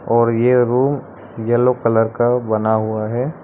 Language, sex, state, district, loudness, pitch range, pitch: Hindi, male, Arunachal Pradesh, Lower Dibang Valley, -17 LUFS, 110-125 Hz, 120 Hz